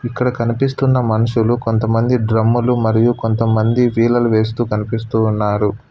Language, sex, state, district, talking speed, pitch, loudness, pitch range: Telugu, male, Telangana, Hyderabad, 110 wpm, 115 Hz, -16 LUFS, 110-120 Hz